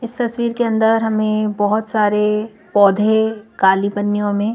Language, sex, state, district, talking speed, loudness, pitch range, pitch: Hindi, female, Madhya Pradesh, Bhopal, 145 wpm, -17 LUFS, 205-220 Hz, 215 Hz